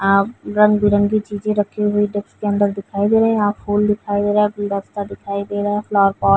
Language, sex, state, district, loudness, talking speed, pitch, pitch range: Hindi, female, Uttar Pradesh, Varanasi, -18 LUFS, 245 wpm, 205 Hz, 200-210 Hz